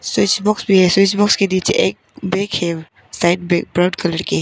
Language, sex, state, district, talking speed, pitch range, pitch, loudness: Hindi, female, Arunachal Pradesh, Papum Pare, 205 wpm, 170-195 Hz, 185 Hz, -16 LUFS